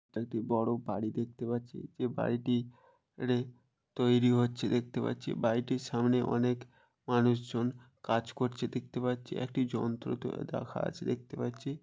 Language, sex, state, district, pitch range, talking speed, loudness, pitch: Bengali, male, West Bengal, Jalpaiguri, 120-125 Hz, 140 wpm, -33 LUFS, 120 Hz